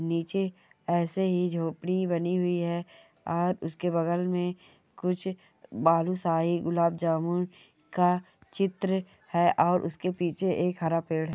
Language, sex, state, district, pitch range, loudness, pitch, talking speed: Hindi, female, Bihar, Bhagalpur, 165-180 Hz, -28 LUFS, 175 Hz, 130 wpm